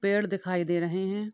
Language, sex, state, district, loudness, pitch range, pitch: Hindi, female, Uttar Pradesh, Deoria, -29 LUFS, 180-200 Hz, 195 Hz